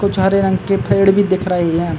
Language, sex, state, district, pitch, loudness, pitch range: Hindi, male, Uttar Pradesh, Muzaffarnagar, 190 Hz, -15 LUFS, 180-195 Hz